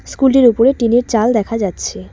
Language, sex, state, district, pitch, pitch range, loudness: Bengali, female, West Bengal, Cooch Behar, 235 Hz, 220-250 Hz, -14 LUFS